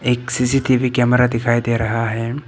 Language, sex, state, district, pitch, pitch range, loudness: Hindi, male, Arunachal Pradesh, Papum Pare, 125 Hz, 115-125 Hz, -17 LUFS